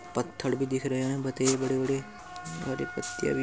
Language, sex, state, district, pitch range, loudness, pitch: Hindi, male, Uttar Pradesh, Muzaffarnagar, 130-135 Hz, -30 LUFS, 130 Hz